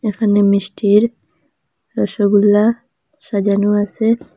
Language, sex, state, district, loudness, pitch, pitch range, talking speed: Bengali, female, Assam, Hailakandi, -15 LUFS, 205 Hz, 205-220 Hz, 70 wpm